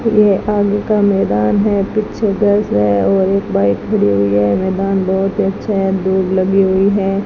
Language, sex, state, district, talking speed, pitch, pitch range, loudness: Hindi, female, Rajasthan, Bikaner, 180 wpm, 195 Hz, 190-205 Hz, -14 LUFS